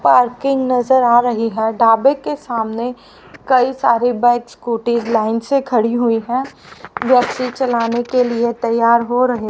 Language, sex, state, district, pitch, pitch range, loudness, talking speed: Hindi, female, Haryana, Rohtak, 240 Hz, 230-255 Hz, -16 LUFS, 150 wpm